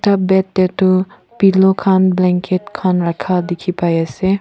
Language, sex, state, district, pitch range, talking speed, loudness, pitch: Nagamese, female, Nagaland, Kohima, 180-190 Hz, 165 wpm, -15 LUFS, 185 Hz